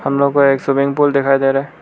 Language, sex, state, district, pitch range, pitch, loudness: Hindi, male, Arunachal Pradesh, Lower Dibang Valley, 135-140 Hz, 140 Hz, -14 LUFS